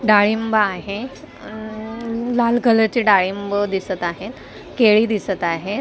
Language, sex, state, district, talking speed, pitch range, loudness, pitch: Marathi, female, Maharashtra, Mumbai Suburban, 115 wpm, 200-230 Hz, -19 LUFS, 215 Hz